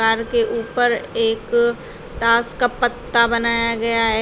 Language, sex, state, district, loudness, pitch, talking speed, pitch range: Hindi, female, Uttar Pradesh, Shamli, -18 LUFS, 235 Hz, 140 wpm, 230-245 Hz